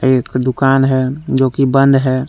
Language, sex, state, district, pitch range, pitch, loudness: Hindi, male, Jharkhand, Deoghar, 130-135 Hz, 130 Hz, -13 LUFS